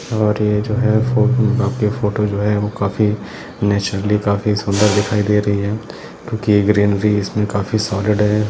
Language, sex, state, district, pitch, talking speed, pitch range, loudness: Hindi, male, Bihar, Jahanabad, 105 Hz, 155 wpm, 105-110 Hz, -17 LUFS